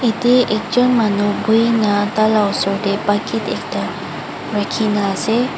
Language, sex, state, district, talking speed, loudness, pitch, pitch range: Nagamese, female, Mizoram, Aizawl, 120 wpm, -17 LUFS, 215 Hz, 205-230 Hz